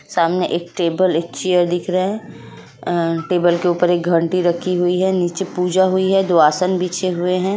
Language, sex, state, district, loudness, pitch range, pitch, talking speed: Hindi, female, Bihar, Jamui, -17 LUFS, 175-185 Hz, 180 Hz, 200 wpm